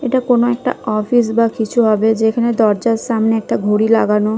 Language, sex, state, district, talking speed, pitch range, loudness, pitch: Bengali, female, Odisha, Khordha, 205 wpm, 215-240 Hz, -15 LUFS, 225 Hz